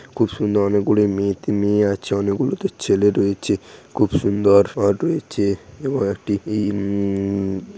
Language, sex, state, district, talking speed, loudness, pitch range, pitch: Bengali, male, West Bengal, Dakshin Dinajpur, 130 wpm, -20 LUFS, 100-105 Hz, 100 Hz